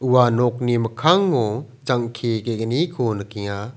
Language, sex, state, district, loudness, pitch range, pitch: Garo, male, Meghalaya, South Garo Hills, -21 LUFS, 115-125 Hz, 120 Hz